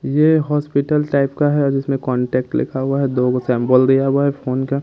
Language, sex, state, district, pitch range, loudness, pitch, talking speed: Hindi, male, Bihar, Katihar, 130-140 Hz, -17 LUFS, 135 Hz, 225 wpm